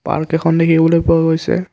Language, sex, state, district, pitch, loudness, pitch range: Assamese, male, Assam, Kamrup Metropolitan, 165 Hz, -14 LUFS, 160-165 Hz